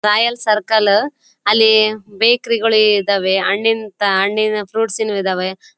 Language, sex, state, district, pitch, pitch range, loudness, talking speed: Kannada, female, Karnataka, Bellary, 215 Hz, 200-225 Hz, -15 LUFS, 115 wpm